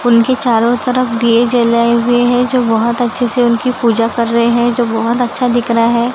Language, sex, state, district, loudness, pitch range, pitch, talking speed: Hindi, male, Maharashtra, Gondia, -12 LUFS, 235-245 Hz, 240 Hz, 225 wpm